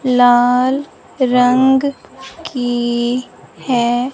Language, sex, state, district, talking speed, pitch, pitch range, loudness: Hindi, male, Punjab, Fazilka, 60 wpm, 250 Hz, 245-260 Hz, -15 LUFS